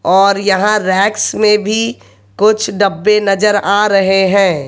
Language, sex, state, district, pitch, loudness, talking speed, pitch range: Hindi, male, Haryana, Jhajjar, 200 Hz, -12 LUFS, 140 wpm, 190-210 Hz